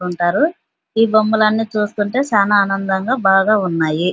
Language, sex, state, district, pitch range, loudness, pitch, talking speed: Telugu, female, Andhra Pradesh, Anantapur, 190-220 Hz, -16 LUFS, 205 Hz, 130 wpm